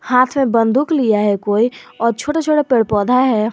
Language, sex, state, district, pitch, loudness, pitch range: Hindi, male, Jharkhand, Garhwa, 240 Hz, -15 LUFS, 220-270 Hz